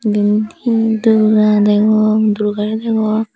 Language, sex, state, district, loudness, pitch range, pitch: Chakma, female, Tripura, Dhalai, -14 LUFS, 210-220 Hz, 215 Hz